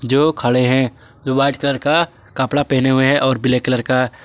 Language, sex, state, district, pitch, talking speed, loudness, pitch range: Hindi, male, Jharkhand, Garhwa, 130 Hz, 210 wpm, -16 LUFS, 125-140 Hz